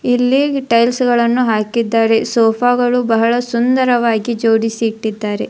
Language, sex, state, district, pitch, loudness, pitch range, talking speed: Kannada, female, Karnataka, Dharwad, 235 Hz, -14 LUFS, 225-245 Hz, 110 wpm